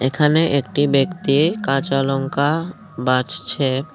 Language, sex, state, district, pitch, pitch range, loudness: Bengali, male, Tripura, Unakoti, 140 Hz, 135-155 Hz, -18 LUFS